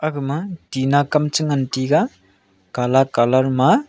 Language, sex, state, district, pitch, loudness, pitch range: Wancho, male, Arunachal Pradesh, Longding, 135 Hz, -19 LUFS, 130-150 Hz